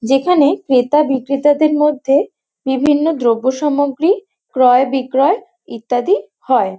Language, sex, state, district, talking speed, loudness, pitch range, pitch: Bengali, female, West Bengal, North 24 Parganas, 95 wpm, -15 LUFS, 260-300 Hz, 280 Hz